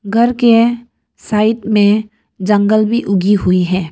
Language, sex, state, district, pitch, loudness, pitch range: Hindi, female, Arunachal Pradesh, Papum Pare, 215 Hz, -13 LUFS, 200-230 Hz